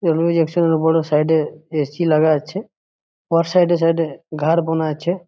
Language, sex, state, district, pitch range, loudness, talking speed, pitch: Bengali, male, West Bengal, Jhargram, 155-170 Hz, -18 LUFS, 180 wpm, 165 Hz